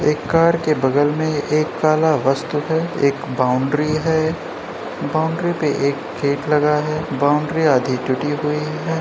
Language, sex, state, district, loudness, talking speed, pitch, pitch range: Hindi, male, Uttar Pradesh, Jyotiba Phule Nagar, -19 LUFS, 180 wpm, 150 Hz, 140-155 Hz